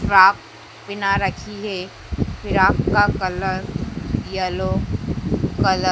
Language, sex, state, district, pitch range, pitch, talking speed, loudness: Hindi, female, Madhya Pradesh, Dhar, 185-200 Hz, 190 Hz, 100 wpm, -20 LUFS